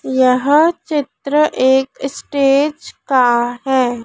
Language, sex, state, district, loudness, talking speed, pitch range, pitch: Hindi, female, Madhya Pradesh, Dhar, -15 LUFS, 90 wpm, 255-290 Hz, 270 Hz